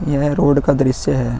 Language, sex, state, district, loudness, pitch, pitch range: Hindi, male, Uttar Pradesh, Muzaffarnagar, -16 LUFS, 140 Hz, 130-145 Hz